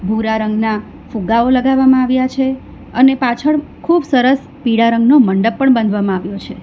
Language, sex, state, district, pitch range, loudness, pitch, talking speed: Gujarati, female, Gujarat, Valsad, 220-265 Hz, -14 LUFS, 245 Hz, 155 wpm